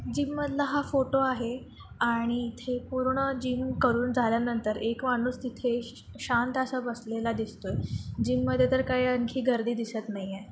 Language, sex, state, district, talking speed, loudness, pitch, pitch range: Marathi, female, Maharashtra, Dhule, 160 wpm, -29 LUFS, 245 Hz, 230-260 Hz